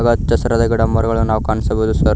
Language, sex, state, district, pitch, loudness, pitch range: Kannada, male, Karnataka, Koppal, 110 Hz, -16 LUFS, 110-115 Hz